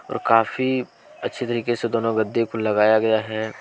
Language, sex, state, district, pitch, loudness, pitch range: Hindi, male, Jharkhand, Deoghar, 115 Hz, -21 LUFS, 110-120 Hz